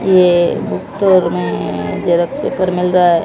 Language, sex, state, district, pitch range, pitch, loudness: Hindi, female, Odisha, Malkangiri, 165-185 Hz, 175 Hz, -14 LUFS